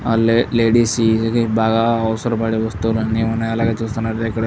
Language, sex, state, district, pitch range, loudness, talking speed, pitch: Telugu, male, Andhra Pradesh, Chittoor, 110-115 Hz, -17 LUFS, 190 wpm, 115 Hz